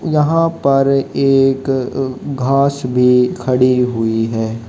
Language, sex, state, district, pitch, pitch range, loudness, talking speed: Hindi, male, Haryana, Jhajjar, 135 Hz, 125-140 Hz, -15 LUFS, 115 wpm